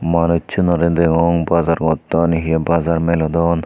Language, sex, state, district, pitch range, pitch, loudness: Chakma, male, Tripura, Unakoti, 80-85 Hz, 85 Hz, -16 LUFS